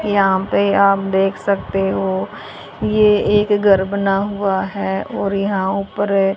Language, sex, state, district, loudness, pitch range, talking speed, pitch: Hindi, female, Haryana, Rohtak, -17 LUFS, 195-200 Hz, 140 wpm, 195 Hz